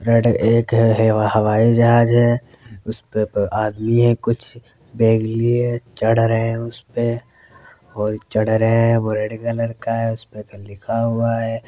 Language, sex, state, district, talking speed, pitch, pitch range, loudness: Hindi, male, Uttar Pradesh, Varanasi, 170 wpm, 115 Hz, 110-115 Hz, -18 LUFS